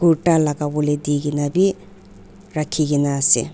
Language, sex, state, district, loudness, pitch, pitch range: Nagamese, female, Nagaland, Dimapur, -19 LUFS, 150 Hz, 145-165 Hz